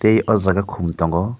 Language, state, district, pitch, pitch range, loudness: Kokborok, Tripura, Dhalai, 100 Hz, 85-110 Hz, -19 LUFS